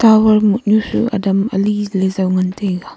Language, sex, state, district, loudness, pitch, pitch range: Wancho, female, Arunachal Pradesh, Longding, -15 LUFS, 205 Hz, 190-215 Hz